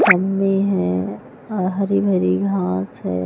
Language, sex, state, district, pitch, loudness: Hindi, female, Himachal Pradesh, Shimla, 180 Hz, -19 LUFS